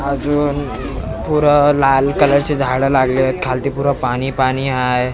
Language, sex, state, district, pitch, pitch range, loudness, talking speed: Marathi, male, Maharashtra, Mumbai Suburban, 135 Hz, 130-145 Hz, -16 LUFS, 140 wpm